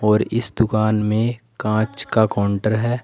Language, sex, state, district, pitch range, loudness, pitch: Hindi, male, Uttar Pradesh, Saharanpur, 105-115 Hz, -20 LUFS, 110 Hz